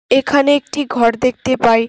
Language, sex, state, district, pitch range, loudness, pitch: Bengali, female, West Bengal, Cooch Behar, 230-280 Hz, -15 LUFS, 260 Hz